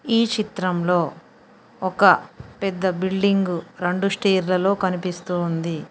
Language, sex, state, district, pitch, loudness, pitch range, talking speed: Telugu, female, Telangana, Mahabubabad, 185 Hz, -21 LUFS, 180-200 Hz, 110 wpm